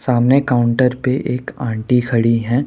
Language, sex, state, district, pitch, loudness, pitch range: Hindi, male, Rajasthan, Jaipur, 125 Hz, -16 LUFS, 120-130 Hz